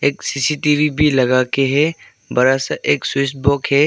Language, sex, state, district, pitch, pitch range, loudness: Hindi, male, Arunachal Pradesh, Longding, 140 Hz, 135-150 Hz, -16 LUFS